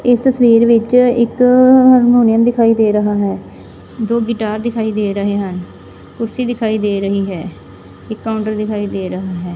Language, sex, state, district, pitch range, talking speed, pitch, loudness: Punjabi, female, Punjab, Fazilka, 195-235 Hz, 165 wpm, 220 Hz, -14 LUFS